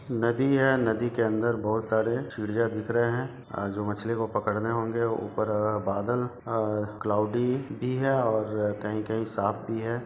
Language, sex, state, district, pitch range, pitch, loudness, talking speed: Hindi, male, Jharkhand, Jamtara, 105-120 Hz, 115 Hz, -28 LUFS, 155 wpm